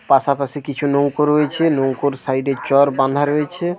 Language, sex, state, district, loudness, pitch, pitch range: Bengali, male, West Bengal, Paschim Medinipur, -17 LUFS, 140 Hz, 135-150 Hz